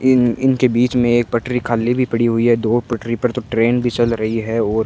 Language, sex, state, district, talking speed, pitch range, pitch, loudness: Hindi, male, Rajasthan, Bikaner, 245 wpm, 115-125 Hz, 120 Hz, -17 LUFS